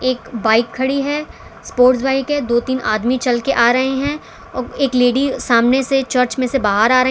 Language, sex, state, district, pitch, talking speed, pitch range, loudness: Hindi, female, Gujarat, Valsad, 255 Hz, 210 wpm, 240-270 Hz, -16 LUFS